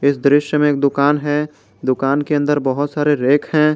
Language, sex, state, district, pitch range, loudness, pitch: Hindi, male, Jharkhand, Garhwa, 140-150 Hz, -16 LUFS, 145 Hz